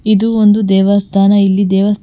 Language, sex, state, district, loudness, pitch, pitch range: Kannada, female, Karnataka, Bangalore, -11 LUFS, 200 Hz, 195-210 Hz